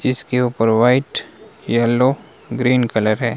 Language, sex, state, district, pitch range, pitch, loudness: Hindi, male, Himachal Pradesh, Shimla, 115-125 Hz, 125 Hz, -17 LUFS